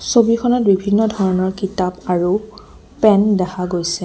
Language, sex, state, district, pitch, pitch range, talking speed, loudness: Assamese, female, Assam, Kamrup Metropolitan, 195 Hz, 185-215 Hz, 120 wpm, -17 LUFS